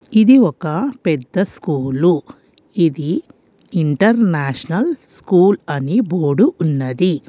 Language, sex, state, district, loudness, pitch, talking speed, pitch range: Telugu, female, Telangana, Hyderabad, -16 LUFS, 175 Hz, 80 wpm, 150-215 Hz